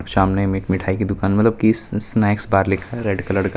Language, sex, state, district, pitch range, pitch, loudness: Hindi, male, Bihar, Purnia, 95-105 Hz, 100 Hz, -19 LUFS